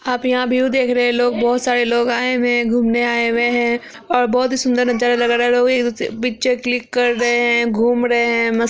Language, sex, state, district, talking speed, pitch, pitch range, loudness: Hindi, female, Bihar, Araria, 260 wpm, 245 Hz, 235-250 Hz, -16 LUFS